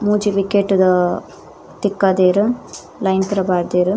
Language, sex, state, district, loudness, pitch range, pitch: Tulu, female, Karnataka, Dakshina Kannada, -17 LUFS, 185-205 Hz, 195 Hz